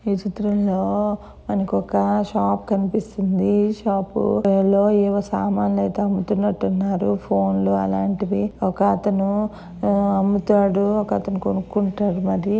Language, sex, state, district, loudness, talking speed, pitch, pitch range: Telugu, female, Karnataka, Raichur, -21 LUFS, 105 wpm, 195 Hz, 180-205 Hz